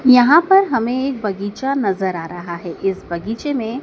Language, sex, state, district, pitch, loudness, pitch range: Hindi, female, Madhya Pradesh, Dhar, 225 Hz, -18 LUFS, 190-270 Hz